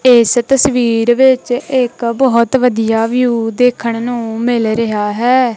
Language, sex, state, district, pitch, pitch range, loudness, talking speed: Punjabi, female, Punjab, Kapurthala, 240 Hz, 230-250 Hz, -13 LUFS, 130 wpm